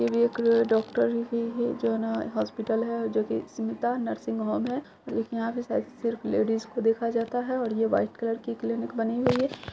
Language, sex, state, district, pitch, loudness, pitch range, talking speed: Hindi, female, Bihar, Saharsa, 230 Hz, -28 LUFS, 220-235 Hz, 215 wpm